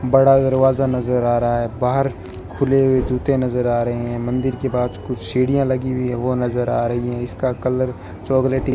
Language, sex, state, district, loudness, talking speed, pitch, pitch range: Hindi, male, Rajasthan, Bikaner, -19 LUFS, 210 wpm, 125 Hz, 120-130 Hz